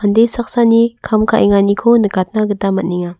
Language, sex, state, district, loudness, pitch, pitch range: Garo, female, Meghalaya, West Garo Hills, -13 LUFS, 215 Hz, 200-230 Hz